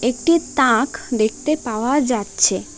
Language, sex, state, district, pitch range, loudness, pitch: Bengali, female, West Bengal, Alipurduar, 225-285 Hz, -18 LUFS, 250 Hz